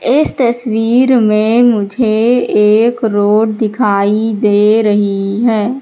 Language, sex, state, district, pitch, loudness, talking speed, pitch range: Hindi, female, Madhya Pradesh, Katni, 220 Hz, -11 LUFS, 105 wpm, 210-240 Hz